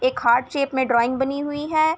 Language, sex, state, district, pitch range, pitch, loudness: Hindi, female, Chhattisgarh, Bilaspur, 255-290 Hz, 265 Hz, -21 LUFS